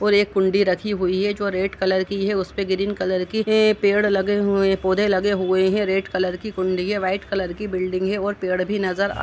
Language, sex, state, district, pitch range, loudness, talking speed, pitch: Hindi, female, Uttar Pradesh, Budaun, 185-205 Hz, -21 LUFS, 265 wpm, 195 Hz